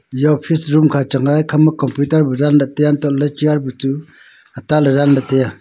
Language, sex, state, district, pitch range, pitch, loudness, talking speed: Wancho, male, Arunachal Pradesh, Longding, 135-150 Hz, 145 Hz, -15 LUFS, 225 wpm